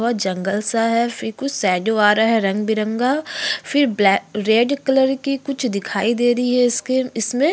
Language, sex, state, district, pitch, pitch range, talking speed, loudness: Hindi, female, Uttarakhand, Tehri Garhwal, 235 Hz, 215-260 Hz, 185 wpm, -18 LUFS